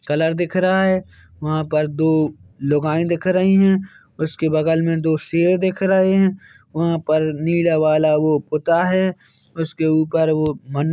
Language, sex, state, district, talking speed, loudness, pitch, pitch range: Hindi, male, Chhattisgarh, Bilaspur, 165 wpm, -18 LUFS, 160 Hz, 155-185 Hz